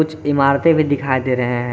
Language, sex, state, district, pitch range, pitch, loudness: Hindi, male, Jharkhand, Garhwa, 130-155 Hz, 140 Hz, -17 LUFS